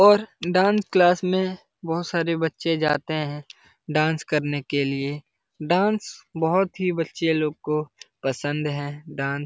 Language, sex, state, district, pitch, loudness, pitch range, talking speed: Hindi, male, Bihar, Lakhisarai, 160 Hz, -24 LUFS, 145-180 Hz, 145 wpm